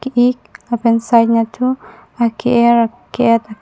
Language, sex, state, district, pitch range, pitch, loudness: Karbi, female, Assam, Karbi Anglong, 230-245 Hz, 235 Hz, -15 LUFS